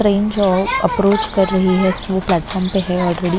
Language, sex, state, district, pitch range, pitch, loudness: Hindi, female, Maharashtra, Mumbai Suburban, 185-200 Hz, 190 Hz, -16 LUFS